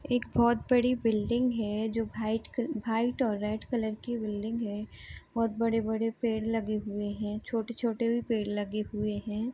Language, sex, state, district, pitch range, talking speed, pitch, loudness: Hindi, female, Uttar Pradesh, Varanasi, 215-235 Hz, 170 wpm, 225 Hz, -31 LUFS